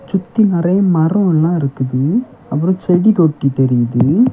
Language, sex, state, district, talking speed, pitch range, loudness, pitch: Tamil, male, Tamil Nadu, Kanyakumari, 125 wpm, 140-195 Hz, -14 LUFS, 170 Hz